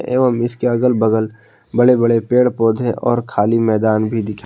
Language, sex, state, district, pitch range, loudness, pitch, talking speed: Hindi, male, Jharkhand, Palamu, 110-120 Hz, -16 LUFS, 115 Hz, 175 wpm